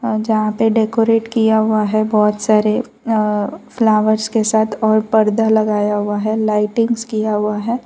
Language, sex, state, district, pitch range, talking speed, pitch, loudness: Hindi, female, Gujarat, Valsad, 215-225 Hz, 170 wpm, 215 Hz, -16 LUFS